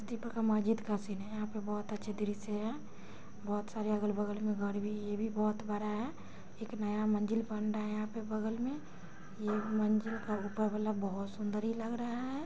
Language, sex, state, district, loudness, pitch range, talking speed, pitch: Maithili, female, Bihar, Samastipur, -37 LUFS, 210-220 Hz, 205 wpm, 215 Hz